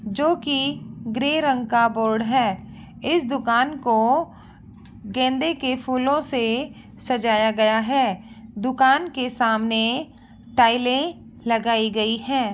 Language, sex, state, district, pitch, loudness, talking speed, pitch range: Hindi, female, Bihar, Begusarai, 245 Hz, -21 LUFS, 115 wpm, 225-270 Hz